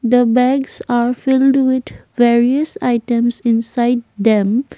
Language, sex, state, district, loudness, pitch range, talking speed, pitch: English, female, Assam, Kamrup Metropolitan, -15 LUFS, 235-260 Hz, 115 wpm, 245 Hz